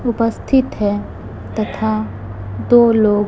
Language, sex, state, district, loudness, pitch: Hindi, female, Chhattisgarh, Raipur, -17 LUFS, 205 Hz